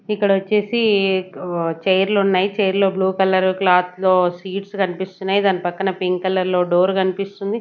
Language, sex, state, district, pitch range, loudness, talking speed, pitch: Telugu, female, Andhra Pradesh, Sri Satya Sai, 185-195 Hz, -18 LUFS, 165 wpm, 190 Hz